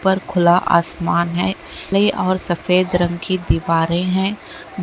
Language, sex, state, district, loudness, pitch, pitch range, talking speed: Bhojpuri, male, Uttar Pradesh, Gorakhpur, -17 LUFS, 180 Hz, 175-190 Hz, 160 wpm